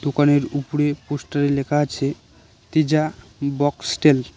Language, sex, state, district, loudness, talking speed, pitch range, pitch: Bengali, male, West Bengal, Cooch Behar, -21 LUFS, 125 wpm, 140-145 Hz, 145 Hz